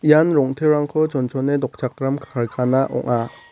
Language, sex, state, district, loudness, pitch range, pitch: Garo, male, Meghalaya, West Garo Hills, -20 LUFS, 125-150 Hz, 135 Hz